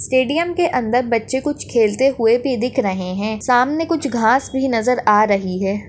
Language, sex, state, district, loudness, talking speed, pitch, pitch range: Hindi, female, Maharashtra, Pune, -17 LUFS, 195 wpm, 245 Hz, 220-270 Hz